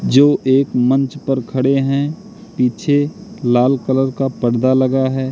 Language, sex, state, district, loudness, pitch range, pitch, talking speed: Hindi, male, Madhya Pradesh, Katni, -16 LUFS, 130-140 Hz, 135 Hz, 145 wpm